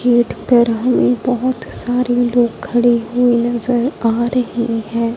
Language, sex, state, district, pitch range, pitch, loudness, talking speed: Hindi, female, Punjab, Fazilka, 235-245 Hz, 240 Hz, -16 LUFS, 140 wpm